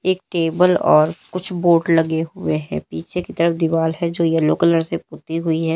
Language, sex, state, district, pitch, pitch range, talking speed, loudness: Hindi, female, Uttar Pradesh, Lalitpur, 165 Hz, 160-170 Hz, 210 wpm, -19 LUFS